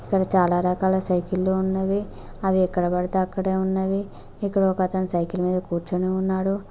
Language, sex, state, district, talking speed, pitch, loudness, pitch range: Telugu, female, Telangana, Mahabubabad, 145 wpm, 190 Hz, -21 LUFS, 180-190 Hz